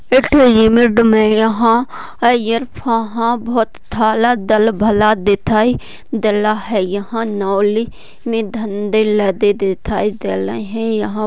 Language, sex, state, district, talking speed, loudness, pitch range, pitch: Hindi, female, Maharashtra, Sindhudurg, 110 wpm, -15 LUFS, 210-230 Hz, 220 Hz